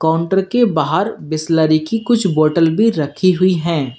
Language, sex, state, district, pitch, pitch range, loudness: Hindi, male, Uttar Pradesh, Lalitpur, 165 Hz, 155-190 Hz, -15 LUFS